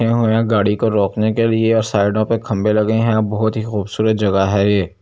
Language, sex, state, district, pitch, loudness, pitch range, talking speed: Hindi, male, Delhi, New Delhi, 110 Hz, -16 LUFS, 105-110 Hz, 215 wpm